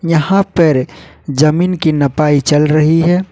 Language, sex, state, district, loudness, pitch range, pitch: Hindi, male, Jharkhand, Ranchi, -12 LUFS, 150-170 Hz, 155 Hz